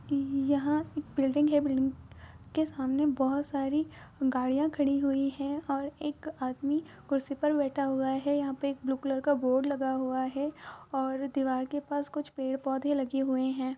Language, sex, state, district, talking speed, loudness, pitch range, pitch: Hindi, female, Andhra Pradesh, Anantapur, 185 wpm, -31 LUFS, 265-290 Hz, 275 Hz